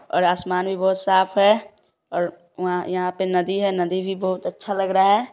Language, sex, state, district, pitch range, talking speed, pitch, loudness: Hindi, female, Bihar, Sitamarhi, 180-195 Hz, 215 wpm, 190 Hz, -21 LUFS